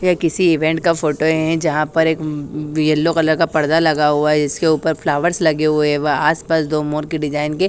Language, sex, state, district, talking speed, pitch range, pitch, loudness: Hindi, female, Haryana, Charkhi Dadri, 225 wpm, 150-160 Hz, 155 Hz, -17 LUFS